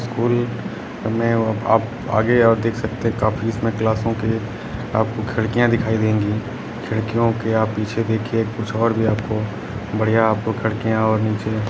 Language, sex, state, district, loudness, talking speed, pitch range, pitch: Hindi, male, Bihar, Jamui, -20 LUFS, 160 wpm, 110-115 Hz, 110 Hz